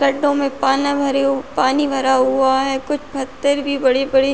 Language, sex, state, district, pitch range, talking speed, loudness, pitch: Hindi, female, Uttar Pradesh, Muzaffarnagar, 265-280 Hz, 205 wpm, -17 LUFS, 275 Hz